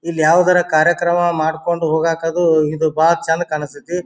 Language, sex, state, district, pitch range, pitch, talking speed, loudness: Kannada, male, Karnataka, Bijapur, 160-170 Hz, 165 Hz, 165 wpm, -16 LUFS